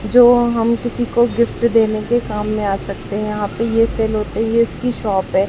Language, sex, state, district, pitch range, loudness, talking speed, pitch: Hindi, male, Chhattisgarh, Raipur, 210-235 Hz, -17 LUFS, 240 wpm, 225 Hz